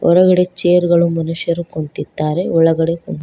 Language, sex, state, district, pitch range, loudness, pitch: Kannada, female, Karnataka, Koppal, 165-175 Hz, -15 LUFS, 170 Hz